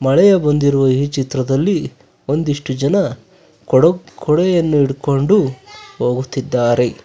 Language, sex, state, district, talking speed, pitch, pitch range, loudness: Kannada, male, Karnataka, Bangalore, 85 wpm, 140 Hz, 130-165 Hz, -16 LUFS